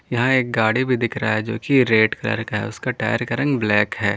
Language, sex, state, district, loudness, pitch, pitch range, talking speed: Hindi, male, Jharkhand, Ranchi, -20 LUFS, 115 Hz, 110-125 Hz, 260 wpm